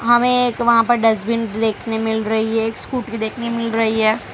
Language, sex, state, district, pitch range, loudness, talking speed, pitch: Hindi, female, Gujarat, Valsad, 220-235 Hz, -18 LUFS, 205 wpm, 225 Hz